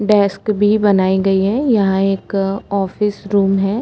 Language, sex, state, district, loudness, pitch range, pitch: Hindi, female, Uttar Pradesh, Etah, -16 LUFS, 195-210 Hz, 200 Hz